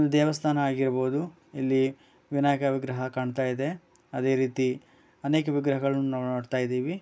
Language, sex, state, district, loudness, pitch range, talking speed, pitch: Kannada, male, Karnataka, Bellary, -28 LUFS, 130-145 Hz, 120 wpm, 135 Hz